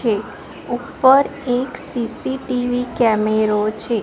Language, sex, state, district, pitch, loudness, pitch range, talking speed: Gujarati, female, Gujarat, Gandhinagar, 245 Hz, -19 LUFS, 220-260 Hz, 90 wpm